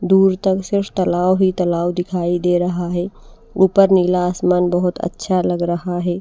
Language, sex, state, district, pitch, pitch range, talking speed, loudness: Hindi, female, Bihar, Patna, 180 Hz, 175-190 Hz, 175 wpm, -17 LUFS